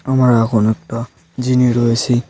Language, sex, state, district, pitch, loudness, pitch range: Bengali, male, West Bengal, Cooch Behar, 120 Hz, -15 LUFS, 115-125 Hz